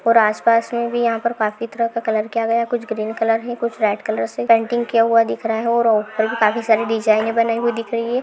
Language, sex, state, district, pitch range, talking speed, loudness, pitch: Hindi, female, Rajasthan, Churu, 220-235 Hz, 285 wpm, -18 LUFS, 230 Hz